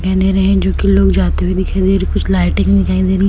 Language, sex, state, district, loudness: Hindi, female, Uttar Pradesh, Etah, -14 LUFS